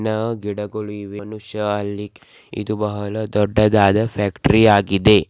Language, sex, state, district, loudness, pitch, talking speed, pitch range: Kannada, male, Karnataka, Belgaum, -18 LUFS, 105 Hz, 125 wpm, 105-110 Hz